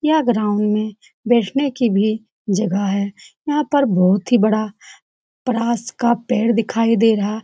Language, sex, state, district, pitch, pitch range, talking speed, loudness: Hindi, female, Bihar, Saran, 225 Hz, 210-240 Hz, 155 wpm, -18 LUFS